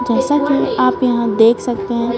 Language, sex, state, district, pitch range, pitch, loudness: Hindi, female, Bihar, Patna, 230-250 Hz, 240 Hz, -15 LUFS